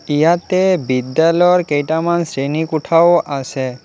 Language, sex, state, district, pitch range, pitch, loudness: Assamese, male, Assam, Kamrup Metropolitan, 140-170 Hz, 160 Hz, -15 LUFS